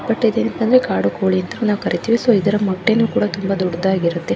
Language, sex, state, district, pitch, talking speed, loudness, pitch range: Kannada, female, Karnataka, Gulbarga, 205 Hz, 190 wpm, -17 LUFS, 190-225 Hz